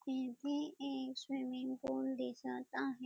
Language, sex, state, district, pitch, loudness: Marathi, female, Maharashtra, Dhule, 260 Hz, -42 LUFS